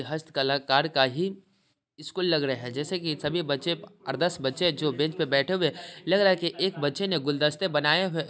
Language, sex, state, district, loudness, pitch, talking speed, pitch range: Hindi, male, Bihar, Sitamarhi, -26 LUFS, 160 Hz, 215 wpm, 145-180 Hz